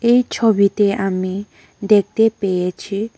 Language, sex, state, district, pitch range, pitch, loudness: Bengali, female, Tripura, West Tripura, 195-220 Hz, 205 Hz, -17 LUFS